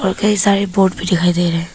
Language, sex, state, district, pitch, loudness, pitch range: Hindi, female, Arunachal Pradesh, Papum Pare, 190 Hz, -15 LUFS, 175-200 Hz